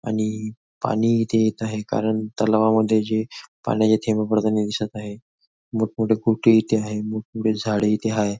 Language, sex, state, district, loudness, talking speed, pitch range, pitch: Marathi, male, Maharashtra, Nagpur, -22 LUFS, 150 wpm, 105-110 Hz, 110 Hz